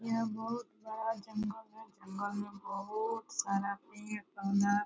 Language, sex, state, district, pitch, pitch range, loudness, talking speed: Hindi, female, Bihar, Purnia, 210 Hz, 200-225 Hz, -38 LUFS, 150 wpm